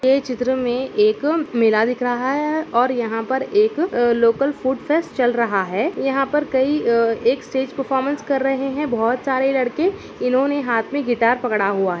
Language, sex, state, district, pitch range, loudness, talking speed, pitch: Hindi, female, Bihar, Darbhanga, 235-275 Hz, -19 LUFS, 195 wpm, 260 Hz